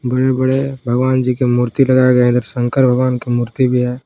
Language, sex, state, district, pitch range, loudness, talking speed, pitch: Hindi, male, Jharkhand, Palamu, 125-130 Hz, -15 LUFS, 220 wpm, 125 Hz